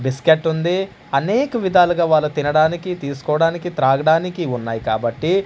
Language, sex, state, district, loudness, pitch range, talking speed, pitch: Telugu, male, Andhra Pradesh, Manyam, -18 LUFS, 135-175 Hz, 100 wpm, 160 Hz